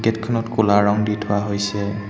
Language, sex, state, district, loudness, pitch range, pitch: Assamese, male, Assam, Hailakandi, -20 LUFS, 100-110 Hz, 105 Hz